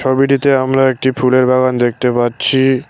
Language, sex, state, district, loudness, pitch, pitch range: Bengali, male, West Bengal, Cooch Behar, -13 LUFS, 130 Hz, 125-135 Hz